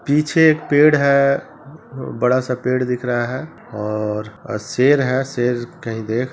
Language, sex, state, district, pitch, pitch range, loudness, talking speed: Hindi, male, Bihar, East Champaran, 125 Hz, 120-140 Hz, -18 LUFS, 140 wpm